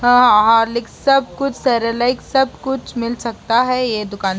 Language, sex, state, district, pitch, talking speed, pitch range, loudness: Hindi, female, Bihar, Gopalganj, 240 Hz, 180 wpm, 230-260 Hz, -16 LUFS